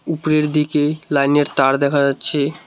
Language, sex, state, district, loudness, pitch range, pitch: Bengali, male, West Bengal, Cooch Behar, -17 LUFS, 140-155 Hz, 145 Hz